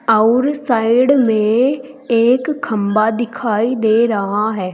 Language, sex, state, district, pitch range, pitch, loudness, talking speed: Hindi, female, Uttar Pradesh, Saharanpur, 220-255 Hz, 230 Hz, -15 LUFS, 115 wpm